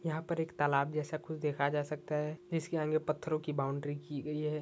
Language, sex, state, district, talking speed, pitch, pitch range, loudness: Hindi, male, Maharashtra, Sindhudurg, 235 wpm, 150 Hz, 145-155 Hz, -35 LUFS